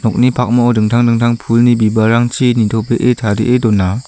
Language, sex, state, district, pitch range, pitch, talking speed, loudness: Garo, male, Meghalaya, South Garo Hills, 110-120 Hz, 120 Hz, 130 wpm, -12 LUFS